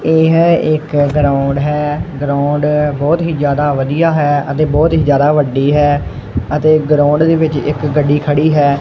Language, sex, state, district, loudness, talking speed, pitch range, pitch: Punjabi, male, Punjab, Kapurthala, -13 LUFS, 170 wpm, 145-155 Hz, 150 Hz